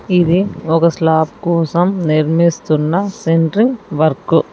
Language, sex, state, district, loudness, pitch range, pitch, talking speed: Telugu, female, Telangana, Mahabubabad, -14 LUFS, 160-180 Hz, 170 Hz, 105 wpm